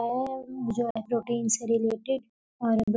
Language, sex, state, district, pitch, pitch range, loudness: Hindi, female, Bihar, Gopalganj, 235 Hz, 225-245 Hz, -29 LUFS